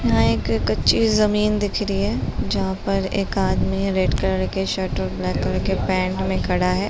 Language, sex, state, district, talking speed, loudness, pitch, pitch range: Hindi, female, Uttar Pradesh, Deoria, 200 wpm, -21 LUFS, 190 Hz, 180-200 Hz